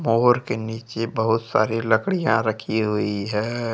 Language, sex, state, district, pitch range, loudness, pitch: Hindi, male, Jharkhand, Deoghar, 110-115 Hz, -22 LUFS, 110 Hz